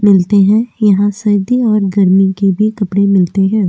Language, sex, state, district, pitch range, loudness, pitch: Hindi, female, Delhi, New Delhi, 195-210 Hz, -12 LUFS, 200 Hz